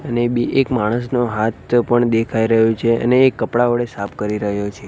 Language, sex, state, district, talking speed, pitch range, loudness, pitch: Gujarati, male, Gujarat, Gandhinagar, 210 wpm, 110-120 Hz, -17 LUFS, 115 Hz